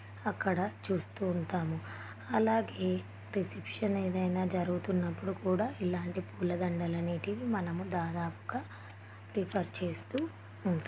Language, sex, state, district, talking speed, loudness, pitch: Telugu, female, Telangana, Nalgonda, 95 wpm, -35 LUFS, 175 Hz